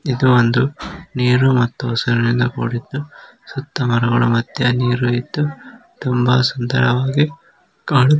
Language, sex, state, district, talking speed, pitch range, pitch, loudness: Kannada, male, Karnataka, Dharwad, 50 wpm, 120-135 Hz, 125 Hz, -17 LUFS